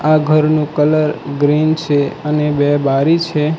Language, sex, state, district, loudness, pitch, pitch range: Gujarati, male, Gujarat, Valsad, -14 LUFS, 150 Hz, 145-155 Hz